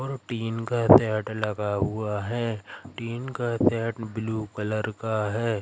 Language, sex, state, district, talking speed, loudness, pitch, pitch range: Hindi, male, Madhya Pradesh, Katni, 150 wpm, -26 LUFS, 110 Hz, 105-115 Hz